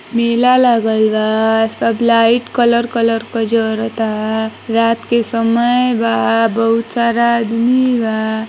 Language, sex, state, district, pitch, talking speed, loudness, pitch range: Bhojpuri, female, Uttar Pradesh, Deoria, 230 Hz, 120 wpm, -14 LUFS, 220-235 Hz